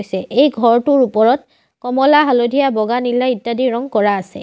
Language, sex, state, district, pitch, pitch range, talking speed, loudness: Assamese, female, Assam, Sonitpur, 245 Hz, 230-265 Hz, 150 wpm, -15 LUFS